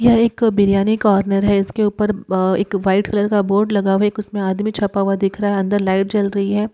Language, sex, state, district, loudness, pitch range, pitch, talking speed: Hindi, female, Bihar, Darbhanga, -17 LUFS, 195-210 Hz, 205 Hz, 260 wpm